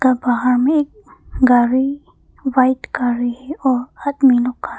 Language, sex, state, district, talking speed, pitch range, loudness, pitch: Hindi, female, Arunachal Pradesh, Papum Pare, 125 wpm, 245-270 Hz, -17 LUFS, 255 Hz